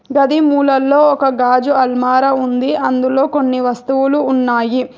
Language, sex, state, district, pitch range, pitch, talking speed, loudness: Telugu, female, Telangana, Hyderabad, 255-280 Hz, 265 Hz, 120 wpm, -13 LUFS